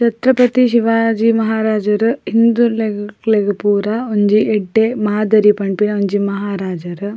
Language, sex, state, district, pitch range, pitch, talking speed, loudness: Tulu, female, Karnataka, Dakshina Kannada, 205-225 Hz, 215 Hz, 90 wpm, -15 LUFS